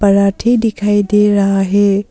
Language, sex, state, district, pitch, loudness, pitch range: Hindi, female, Arunachal Pradesh, Papum Pare, 205 Hz, -13 LUFS, 200-210 Hz